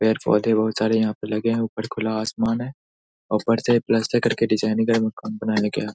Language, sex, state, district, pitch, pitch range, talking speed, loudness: Hindi, male, Bihar, Saharsa, 110 Hz, 110-115 Hz, 210 wpm, -22 LUFS